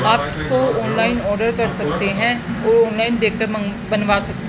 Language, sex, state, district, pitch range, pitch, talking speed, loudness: Hindi, female, Haryana, Charkhi Dadri, 205-225 Hz, 220 Hz, 185 wpm, -18 LUFS